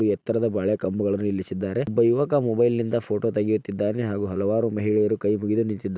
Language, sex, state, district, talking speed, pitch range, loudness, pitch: Kannada, male, Karnataka, Dharwad, 160 wpm, 100-115 Hz, -24 LUFS, 105 Hz